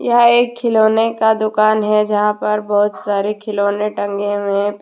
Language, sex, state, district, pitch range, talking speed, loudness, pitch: Hindi, female, Jharkhand, Deoghar, 205-220 Hz, 185 wpm, -16 LUFS, 210 Hz